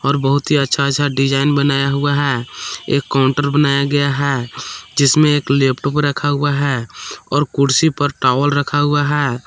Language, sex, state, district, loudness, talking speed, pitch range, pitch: Hindi, male, Jharkhand, Palamu, -16 LUFS, 170 wpm, 135-145 Hz, 140 Hz